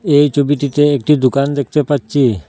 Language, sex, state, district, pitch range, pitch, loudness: Bengali, male, Assam, Hailakandi, 140-145 Hz, 145 Hz, -14 LUFS